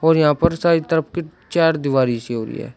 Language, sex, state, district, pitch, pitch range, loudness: Hindi, male, Uttar Pradesh, Shamli, 160 Hz, 140-165 Hz, -18 LUFS